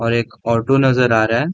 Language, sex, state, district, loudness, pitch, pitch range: Hindi, male, Bihar, Darbhanga, -16 LUFS, 115 Hz, 115-130 Hz